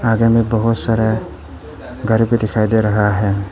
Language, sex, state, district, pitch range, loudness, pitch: Hindi, male, Arunachal Pradesh, Papum Pare, 105-115 Hz, -16 LUFS, 110 Hz